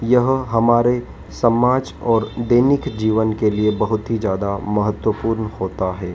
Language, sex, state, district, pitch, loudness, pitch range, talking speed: Hindi, male, Madhya Pradesh, Dhar, 110 Hz, -18 LUFS, 105-120 Hz, 135 wpm